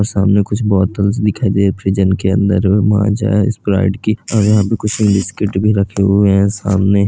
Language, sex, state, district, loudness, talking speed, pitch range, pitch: Hindi, male, Bihar, East Champaran, -14 LUFS, 205 wpm, 100-105 Hz, 100 Hz